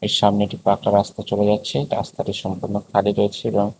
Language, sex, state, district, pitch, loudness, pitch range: Bengali, male, Tripura, West Tripura, 100 Hz, -21 LUFS, 100-105 Hz